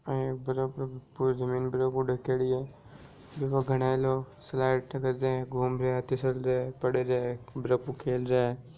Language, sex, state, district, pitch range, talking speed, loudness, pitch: Marwari, male, Rajasthan, Nagaur, 125-130 Hz, 205 wpm, -30 LUFS, 130 Hz